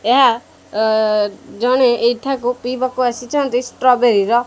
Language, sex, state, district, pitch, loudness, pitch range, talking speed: Odia, male, Odisha, Khordha, 245 Hz, -16 LUFS, 230-255 Hz, 120 wpm